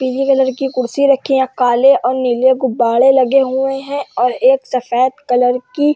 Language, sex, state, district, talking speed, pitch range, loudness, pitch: Hindi, female, Uttar Pradesh, Hamirpur, 200 wpm, 250-270 Hz, -14 LUFS, 260 Hz